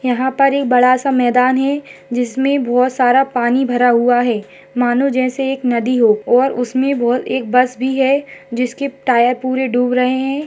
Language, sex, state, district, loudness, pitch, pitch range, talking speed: Hindi, female, Rajasthan, Nagaur, -15 LUFS, 250 Hz, 245-265 Hz, 175 wpm